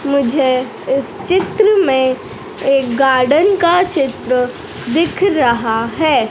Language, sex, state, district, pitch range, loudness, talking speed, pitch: Hindi, female, Madhya Pradesh, Dhar, 255-345 Hz, -14 LUFS, 105 wpm, 275 Hz